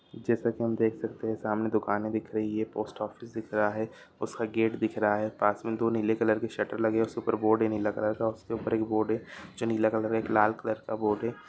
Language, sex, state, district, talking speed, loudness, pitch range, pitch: Hindi, male, Uttar Pradesh, Deoria, 270 wpm, -29 LUFS, 110-115 Hz, 110 Hz